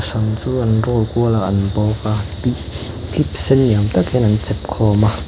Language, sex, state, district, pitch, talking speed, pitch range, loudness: Mizo, male, Mizoram, Aizawl, 110 Hz, 225 wpm, 105-120 Hz, -17 LUFS